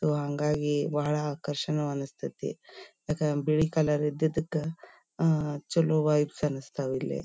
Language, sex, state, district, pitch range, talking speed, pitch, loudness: Kannada, female, Karnataka, Dharwad, 145-155 Hz, 115 wpm, 150 Hz, -29 LUFS